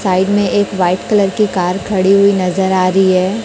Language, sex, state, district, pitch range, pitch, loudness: Hindi, female, Chhattisgarh, Raipur, 185-200 Hz, 190 Hz, -13 LUFS